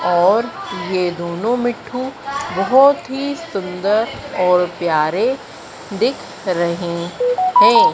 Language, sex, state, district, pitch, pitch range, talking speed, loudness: Hindi, female, Madhya Pradesh, Dhar, 200 Hz, 175-265 Hz, 90 wpm, -17 LUFS